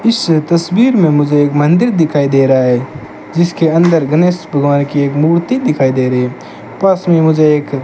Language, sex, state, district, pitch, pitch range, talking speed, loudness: Hindi, male, Rajasthan, Bikaner, 155 Hz, 140-170 Hz, 200 wpm, -12 LUFS